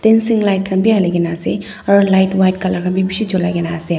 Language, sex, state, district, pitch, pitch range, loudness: Nagamese, female, Nagaland, Dimapur, 190 Hz, 175-200 Hz, -15 LUFS